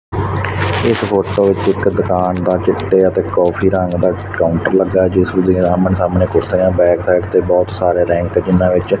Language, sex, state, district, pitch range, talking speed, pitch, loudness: Punjabi, male, Punjab, Fazilka, 90-95 Hz, 180 wpm, 95 Hz, -14 LUFS